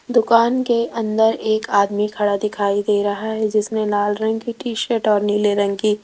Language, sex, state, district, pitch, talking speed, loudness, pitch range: Hindi, female, Rajasthan, Jaipur, 215 Hz, 210 wpm, -19 LUFS, 205-225 Hz